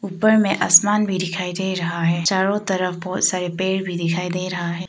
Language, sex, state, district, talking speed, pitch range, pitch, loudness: Hindi, female, Arunachal Pradesh, Papum Pare, 220 wpm, 175-190 Hz, 185 Hz, -19 LUFS